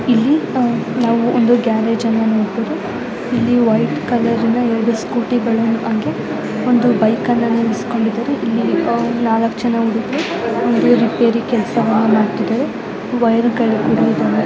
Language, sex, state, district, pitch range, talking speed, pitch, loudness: Kannada, female, Karnataka, Raichur, 225-240 Hz, 130 wpm, 230 Hz, -16 LUFS